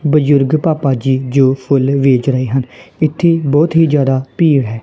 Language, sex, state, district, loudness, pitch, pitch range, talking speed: Punjabi, female, Punjab, Kapurthala, -13 LUFS, 140 Hz, 130-155 Hz, 175 wpm